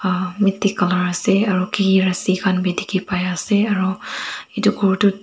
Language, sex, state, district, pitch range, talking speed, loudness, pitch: Nagamese, female, Nagaland, Dimapur, 185-205 Hz, 135 wpm, -19 LUFS, 190 Hz